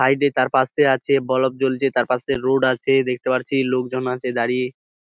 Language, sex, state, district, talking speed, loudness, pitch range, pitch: Bengali, male, West Bengal, Dakshin Dinajpur, 205 wpm, -20 LUFS, 125-135 Hz, 130 Hz